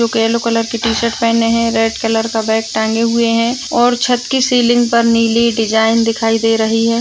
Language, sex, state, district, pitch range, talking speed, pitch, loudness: Hindi, female, Bihar, Jahanabad, 225-235 Hz, 215 wpm, 230 Hz, -14 LUFS